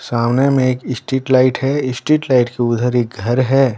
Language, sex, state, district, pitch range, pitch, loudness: Hindi, male, Bihar, Patna, 120-135 Hz, 130 Hz, -16 LUFS